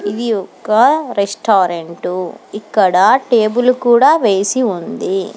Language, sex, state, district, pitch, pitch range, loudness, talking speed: Telugu, female, Telangana, Hyderabad, 210 Hz, 190-240 Hz, -14 LUFS, 90 wpm